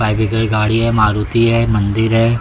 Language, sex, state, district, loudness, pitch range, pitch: Hindi, male, Maharashtra, Mumbai Suburban, -14 LUFS, 110-115 Hz, 110 Hz